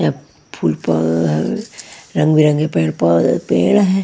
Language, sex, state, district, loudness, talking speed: Hindi, female, Punjab, Pathankot, -16 LUFS, 90 wpm